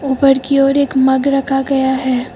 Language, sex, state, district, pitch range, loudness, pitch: Hindi, female, Uttar Pradesh, Lucknow, 265-275 Hz, -14 LUFS, 270 Hz